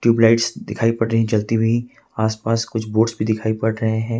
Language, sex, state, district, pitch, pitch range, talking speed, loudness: Hindi, male, Jharkhand, Ranchi, 115 Hz, 110-115 Hz, 200 wpm, -19 LUFS